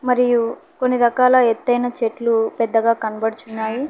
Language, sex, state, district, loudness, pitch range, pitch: Telugu, female, Telangana, Hyderabad, -17 LUFS, 225-250 Hz, 235 Hz